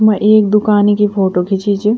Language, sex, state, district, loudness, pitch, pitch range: Garhwali, female, Uttarakhand, Tehri Garhwal, -12 LUFS, 210 Hz, 200-215 Hz